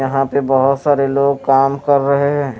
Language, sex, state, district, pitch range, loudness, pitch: Hindi, male, Haryana, Rohtak, 135-140 Hz, -15 LUFS, 140 Hz